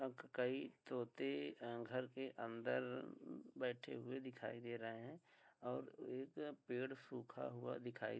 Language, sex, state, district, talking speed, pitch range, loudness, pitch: Hindi, male, Uttar Pradesh, Hamirpur, 130 wpm, 115-130 Hz, -48 LUFS, 120 Hz